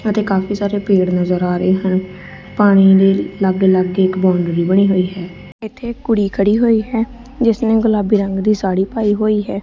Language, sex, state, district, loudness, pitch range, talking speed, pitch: Punjabi, female, Punjab, Kapurthala, -15 LUFS, 185-215 Hz, 200 wpm, 195 Hz